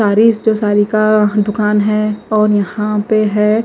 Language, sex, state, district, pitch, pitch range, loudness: Hindi, female, Himachal Pradesh, Shimla, 210 Hz, 210-215 Hz, -13 LUFS